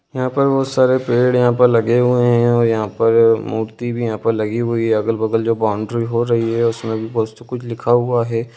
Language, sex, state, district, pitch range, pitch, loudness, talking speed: Hindi, male, Bihar, Vaishali, 115-120 Hz, 115 Hz, -17 LUFS, 225 wpm